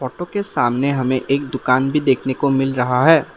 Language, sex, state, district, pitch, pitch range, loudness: Hindi, male, Assam, Sonitpur, 135 Hz, 130-145 Hz, -18 LUFS